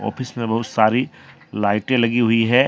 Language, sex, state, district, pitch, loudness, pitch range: Hindi, male, Jharkhand, Deoghar, 115 Hz, -19 LUFS, 110-125 Hz